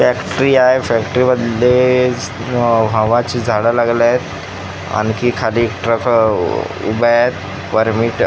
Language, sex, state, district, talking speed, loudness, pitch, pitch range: Marathi, male, Maharashtra, Gondia, 100 wpm, -14 LUFS, 115 Hz, 110-120 Hz